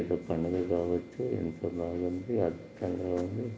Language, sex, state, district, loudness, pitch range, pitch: Telugu, male, Telangana, Nalgonda, -33 LUFS, 85-95 Hz, 90 Hz